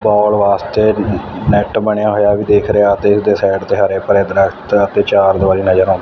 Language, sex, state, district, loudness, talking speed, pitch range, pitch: Punjabi, male, Punjab, Fazilka, -13 LUFS, 200 wpm, 95-105 Hz, 100 Hz